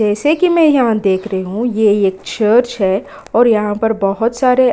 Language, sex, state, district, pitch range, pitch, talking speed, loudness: Hindi, female, Bihar, Kishanganj, 200-250 Hz, 225 Hz, 215 wpm, -14 LUFS